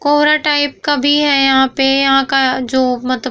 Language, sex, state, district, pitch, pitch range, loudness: Hindi, female, Bihar, Vaishali, 270 Hz, 260-290 Hz, -13 LUFS